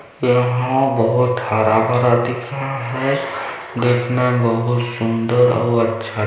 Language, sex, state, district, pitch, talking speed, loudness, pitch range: Hindi, male, Chhattisgarh, Balrampur, 120 Hz, 125 wpm, -18 LUFS, 115-125 Hz